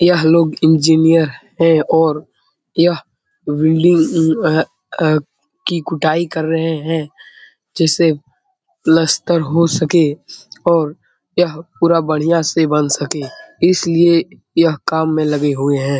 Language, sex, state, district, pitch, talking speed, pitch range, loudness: Hindi, male, Bihar, Saran, 160 Hz, 115 wpm, 155-170 Hz, -15 LUFS